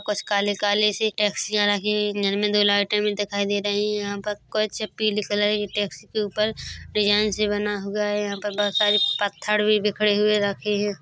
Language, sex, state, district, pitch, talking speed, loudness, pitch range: Hindi, female, Chhattisgarh, Korba, 210 Hz, 235 wpm, -22 LUFS, 205-210 Hz